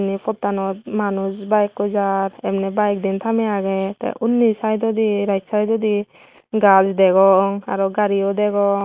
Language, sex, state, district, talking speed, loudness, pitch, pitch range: Chakma, female, Tripura, West Tripura, 135 wpm, -18 LUFS, 200 Hz, 195-215 Hz